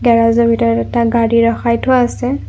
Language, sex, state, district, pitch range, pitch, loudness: Assamese, female, Assam, Kamrup Metropolitan, 230-240 Hz, 235 Hz, -13 LUFS